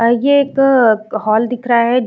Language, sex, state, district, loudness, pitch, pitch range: Hindi, female, Bihar, Saran, -13 LUFS, 240 Hz, 225-265 Hz